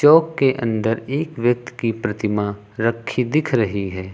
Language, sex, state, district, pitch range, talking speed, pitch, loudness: Hindi, female, Uttar Pradesh, Lucknow, 105-130 Hz, 145 wpm, 115 Hz, -20 LUFS